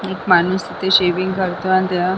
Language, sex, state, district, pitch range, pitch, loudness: Marathi, female, Maharashtra, Sindhudurg, 180-190 Hz, 185 Hz, -17 LUFS